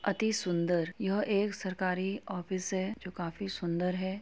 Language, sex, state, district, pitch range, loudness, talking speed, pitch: Hindi, female, Uttar Pradesh, Etah, 180-200 Hz, -33 LUFS, 155 wpm, 190 Hz